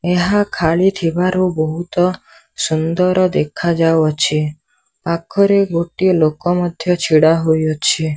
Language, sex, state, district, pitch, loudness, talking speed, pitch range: Odia, male, Odisha, Sambalpur, 170 Hz, -16 LUFS, 105 wpm, 160-180 Hz